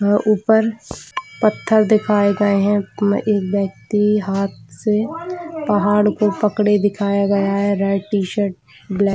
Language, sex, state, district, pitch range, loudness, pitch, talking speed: Hindi, female, Chhattisgarh, Bilaspur, 200-215 Hz, -18 LUFS, 205 Hz, 125 wpm